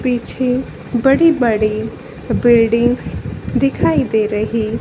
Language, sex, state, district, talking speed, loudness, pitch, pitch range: Hindi, female, Haryana, Rohtak, 85 wpm, -16 LUFS, 240 Hz, 220-255 Hz